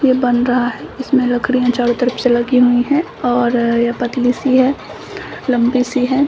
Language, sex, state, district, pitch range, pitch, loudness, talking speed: Hindi, female, Bihar, Samastipur, 240-255 Hz, 245 Hz, -15 LUFS, 190 wpm